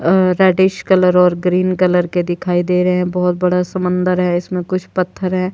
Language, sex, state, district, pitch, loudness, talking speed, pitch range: Hindi, female, Himachal Pradesh, Shimla, 180 Hz, -15 LUFS, 205 wpm, 180-185 Hz